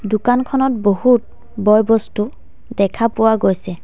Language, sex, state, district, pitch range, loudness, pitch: Assamese, female, Assam, Sonitpur, 205-240 Hz, -16 LUFS, 220 Hz